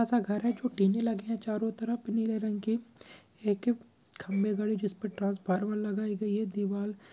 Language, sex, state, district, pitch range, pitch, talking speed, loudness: Hindi, male, Andhra Pradesh, Guntur, 205-225 Hz, 215 Hz, 200 wpm, -32 LUFS